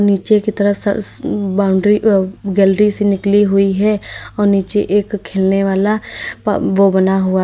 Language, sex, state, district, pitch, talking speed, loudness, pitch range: Hindi, female, Uttar Pradesh, Lalitpur, 200 Hz, 160 wpm, -14 LUFS, 195-205 Hz